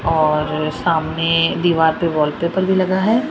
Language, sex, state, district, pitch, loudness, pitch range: Hindi, female, Rajasthan, Jaipur, 165 Hz, -17 LUFS, 155-185 Hz